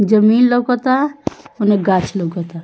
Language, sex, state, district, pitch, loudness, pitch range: Bhojpuri, female, Bihar, Muzaffarpur, 215 Hz, -15 LUFS, 190-255 Hz